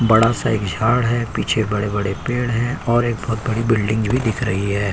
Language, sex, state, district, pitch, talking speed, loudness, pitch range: Hindi, male, Uttar Pradesh, Jyotiba Phule Nagar, 115 Hz, 230 wpm, -19 LUFS, 105-120 Hz